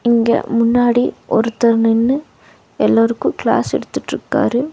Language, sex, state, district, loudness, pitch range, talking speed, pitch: Tamil, female, Tamil Nadu, Nilgiris, -16 LUFS, 230-245 Hz, 90 wpm, 235 Hz